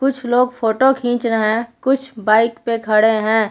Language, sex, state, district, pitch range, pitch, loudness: Hindi, female, Jharkhand, Palamu, 220-250 Hz, 230 Hz, -17 LUFS